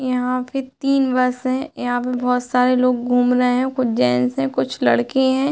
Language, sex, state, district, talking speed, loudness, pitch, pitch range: Hindi, female, Uttar Pradesh, Hamirpur, 205 wpm, -19 LUFS, 250 Hz, 245-260 Hz